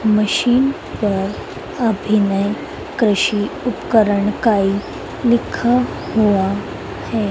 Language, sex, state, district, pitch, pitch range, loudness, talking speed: Hindi, female, Madhya Pradesh, Dhar, 210 Hz, 200-235 Hz, -18 LUFS, 75 wpm